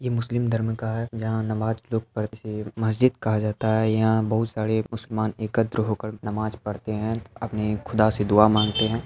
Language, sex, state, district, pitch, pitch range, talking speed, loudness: Hindi, male, Bihar, Araria, 110 Hz, 110-115 Hz, 185 wpm, -25 LUFS